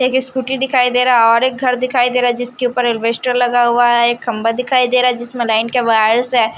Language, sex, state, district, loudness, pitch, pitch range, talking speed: Hindi, male, Odisha, Nuapada, -14 LUFS, 245 Hz, 235-250 Hz, 275 wpm